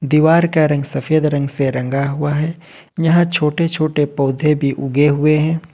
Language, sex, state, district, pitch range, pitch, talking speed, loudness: Hindi, male, Jharkhand, Ranchi, 140-160 Hz, 150 Hz, 180 wpm, -16 LUFS